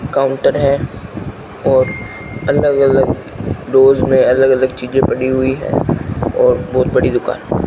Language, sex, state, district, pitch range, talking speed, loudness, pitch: Hindi, male, Rajasthan, Bikaner, 125-135 Hz, 140 wpm, -14 LUFS, 130 Hz